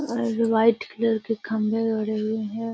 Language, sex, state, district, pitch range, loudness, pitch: Hindi, female, Bihar, Gaya, 220-230 Hz, -24 LUFS, 225 Hz